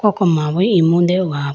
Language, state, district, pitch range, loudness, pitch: Idu Mishmi, Arunachal Pradesh, Lower Dibang Valley, 155-185 Hz, -15 LUFS, 175 Hz